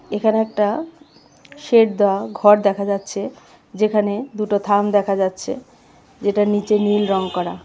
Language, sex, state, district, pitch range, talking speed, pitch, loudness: Bengali, female, Tripura, West Tripura, 200-220 Hz, 140 wpm, 205 Hz, -18 LUFS